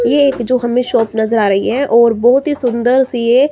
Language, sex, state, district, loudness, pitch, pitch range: Hindi, female, Himachal Pradesh, Shimla, -13 LUFS, 245 Hz, 235-265 Hz